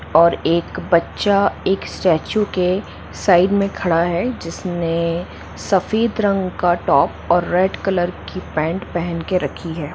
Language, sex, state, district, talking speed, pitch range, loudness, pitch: Hindi, female, Jharkhand, Jamtara, 145 wpm, 170-195 Hz, -18 LUFS, 175 Hz